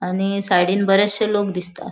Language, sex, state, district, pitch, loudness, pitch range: Konkani, female, Goa, North and South Goa, 195 Hz, -19 LUFS, 180-200 Hz